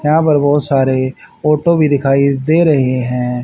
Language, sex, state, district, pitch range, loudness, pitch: Hindi, male, Haryana, Rohtak, 130-150 Hz, -13 LUFS, 140 Hz